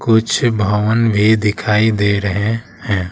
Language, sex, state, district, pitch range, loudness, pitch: Hindi, male, Bihar, Patna, 105-110 Hz, -15 LUFS, 105 Hz